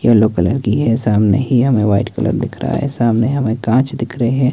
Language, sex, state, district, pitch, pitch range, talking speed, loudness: Hindi, male, Himachal Pradesh, Shimla, 115 Hz, 110-130 Hz, 240 wpm, -15 LUFS